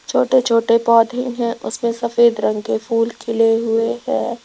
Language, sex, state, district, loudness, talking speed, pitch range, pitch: Hindi, female, Rajasthan, Jaipur, -17 LUFS, 160 wpm, 230-235 Hz, 230 Hz